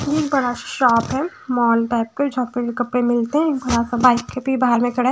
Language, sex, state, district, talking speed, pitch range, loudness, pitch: Hindi, female, Punjab, Fazilka, 235 wpm, 240-265 Hz, -19 LUFS, 245 Hz